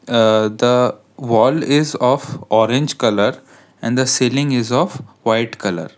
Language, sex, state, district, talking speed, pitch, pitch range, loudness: English, male, Karnataka, Bangalore, 140 wpm, 125 Hz, 110-140 Hz, -16 LUFS